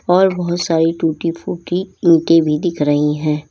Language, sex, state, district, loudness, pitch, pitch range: Hindi, female, Uttar Pradesh, Lalitpur, -16 LUFS, 165 Hz, 155-175 Hz